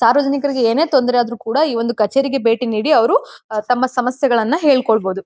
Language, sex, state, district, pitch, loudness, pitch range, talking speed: Kannada, female, Karnataka, Mysore, 245 Hz, -16 LUFS, 230-275 Hz, 160 wpm